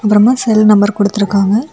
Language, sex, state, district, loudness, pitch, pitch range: Tamil, female, Tamil Nadu, Kanyakumari, -11 LUFS, 210 Hz, 205-220 Hz